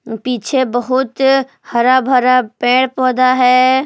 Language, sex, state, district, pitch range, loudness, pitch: Hindi, female, Jharkhand, Palamu, 250-260 Hz, -13 LUFS, 255 Hz